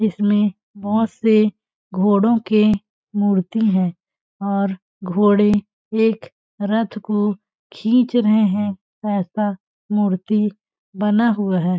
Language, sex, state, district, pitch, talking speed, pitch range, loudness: Hindi, female, Chhattisgarh, Balrampur, 210 Hz, 100 wpm, 200-215 Hz, -19 LUFS